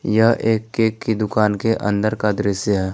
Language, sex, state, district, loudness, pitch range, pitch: Hindi, male, Jharkhand, Ranchi, -19 LUFS, 105-110 Hz, 110 Hz